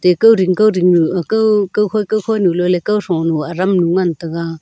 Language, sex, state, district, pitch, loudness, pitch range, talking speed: Wancho, female, Arunachal Pradesh, Longding, 180 Hz, -14 LUFS, 175-210 Hz, 205 wpm